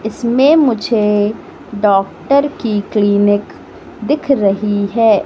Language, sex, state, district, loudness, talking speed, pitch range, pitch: Hindi, female, Madhya Pradesh, Katni, -14 LUFS, 90 wpm, 205-275 Hz, 215 Hz